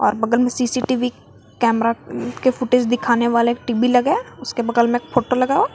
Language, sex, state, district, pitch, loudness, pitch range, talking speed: Hindi, female, Jharkhand, Garhwa, 240 Hz, -19 LUFS, 235-250 Hz, 200 wpm